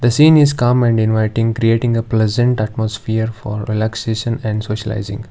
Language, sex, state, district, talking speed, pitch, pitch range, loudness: English, male, Karnataka, Bangalore, 145 wpm, 110 Hz, 110-120 Hz, -16 LUFS